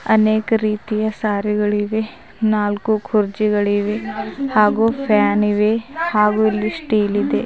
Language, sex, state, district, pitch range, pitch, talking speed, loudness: Kannada, female, Karnataka, Bidar, 210-220 Hz, 215 Hz, 105 wpm, -18 LUFS